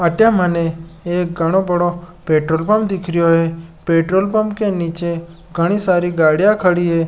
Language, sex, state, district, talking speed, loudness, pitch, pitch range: Marwari, male, Rajasthan, Nagaur, 160 wpm, -16 LUFS, 175 Hz, 165-185 Hz